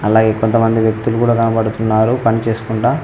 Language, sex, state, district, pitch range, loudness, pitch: Telugu, male, Telangana, Mahabubabad, 110-115 Hz, -15 LUFS, 115 Hz